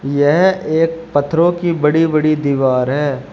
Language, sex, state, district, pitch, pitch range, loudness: Hindi, male, Uttar Pradesh, Shamli, 155 Hz, 140-165 Hz, -15 LUFS